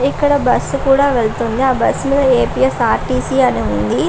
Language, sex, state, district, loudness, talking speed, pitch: Telugu, female, Andhra Pradesh, Srikakulam, -14 LUFS, 220 wpm, 250 Hz